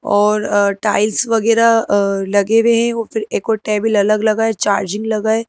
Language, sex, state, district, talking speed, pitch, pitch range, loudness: Hindi, female, Madhya Pradesh, Bhopal, 195 wpm, 215 Hz, 205-225 Hz, -15 LUFS